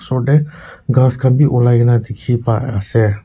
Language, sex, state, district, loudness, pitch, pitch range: Nagamese, male, Nagaland, Kohima, -14 LUFS, 120 Hz, 115-130 Hz